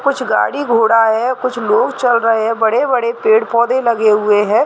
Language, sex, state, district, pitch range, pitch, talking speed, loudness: Hindi, female, Chhattisgarh, Bilaspur, 220-250 Hz, 230 Hz, 180 wpm, -14 LUFS